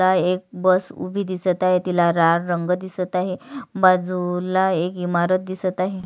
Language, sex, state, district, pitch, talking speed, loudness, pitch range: Marathi, female, Maharashtra, Sindhudurg, 185 Hz, 160 wpm, -21 LUFS, 180-185 Hz